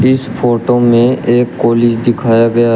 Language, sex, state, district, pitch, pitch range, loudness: Hindi, male, Uttar Pradesh, Shamli, 120 Hz, 115-125 Hz, -11 LUFS